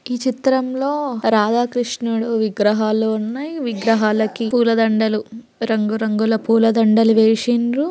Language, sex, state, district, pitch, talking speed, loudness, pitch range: Telugu, female, Andhra Pradesh, Guntur, 225 Hz, 115 wpm, -18 LUFS, 220-245 Hz